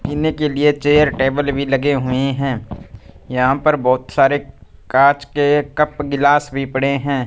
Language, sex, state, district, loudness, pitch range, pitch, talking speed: Hindi, male, Punjab, Fazilka, -16 LUFS, 130-145 Hz, 140 Hz, 165 wpm